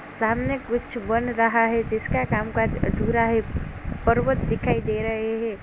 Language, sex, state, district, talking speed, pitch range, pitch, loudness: Hindi, female, Uttar Pradesh, Jalaun, 160 wpm, 220-230 Hz, 225 Hz, -24 LUFS